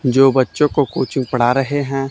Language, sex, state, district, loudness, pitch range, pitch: Hindi, male, Haryana, Charkhi Dadri, -16 LUFS, 130-145 Hz, 135 Hz